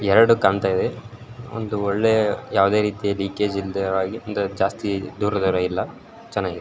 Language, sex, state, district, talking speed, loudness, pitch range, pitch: Kannada, male, Karnataka, Shimoga, 125 wpm, -22 LUFS, 95-105 Hz, 100 Hz